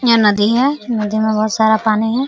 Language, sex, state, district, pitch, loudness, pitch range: Hindi, female, Jharkhand, Sahebganj, 220 Hz, -15 LUFS, 215-235 Hz